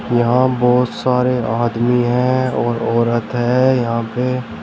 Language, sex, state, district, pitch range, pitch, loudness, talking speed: Hindi, male, Uttar Pradesh, Shamli, 120-125 Hz, 120 Hz, -16 LUFS, 130 wpm